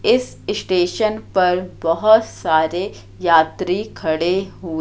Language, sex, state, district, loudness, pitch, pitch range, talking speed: Hindi, female, Madhya Pradesh, Katni, -18 LUFS, 180 Hz, 165-195 Hz, 100 wpm